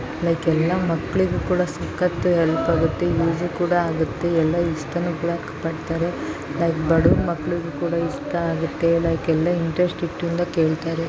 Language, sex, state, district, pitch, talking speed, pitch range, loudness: Kannada, female, Karnataka, Bijapur, 170 Hz, 125 wpm, 165-175 Hz, -22 LUFS